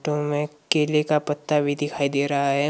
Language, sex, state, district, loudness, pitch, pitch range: Hindi, male, Himachal Pradesh, Shimla, -23 LUFS, 150 Hz, 145-150 Hz